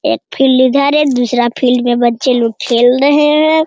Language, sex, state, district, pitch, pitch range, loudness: Hindi, female, Bihar, Jamui, 255 Hz, 240-285 Hz, -11 LUFS